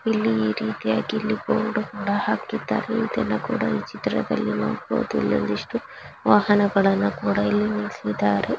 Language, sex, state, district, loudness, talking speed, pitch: Kannada, female, Karnataka, Raichur, -23 LUFS, 100 wpm, 195 Hz